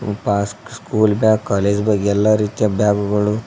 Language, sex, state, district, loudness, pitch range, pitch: Kannada, male, Karnataka, Koppal, -17 LUFS, 100-110 Hz, 105 Hz